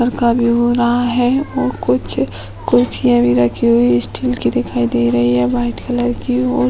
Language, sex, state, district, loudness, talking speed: Hindi, female, Uttar Pradesh, Hamirpur, -15 LUFS, 205 wpm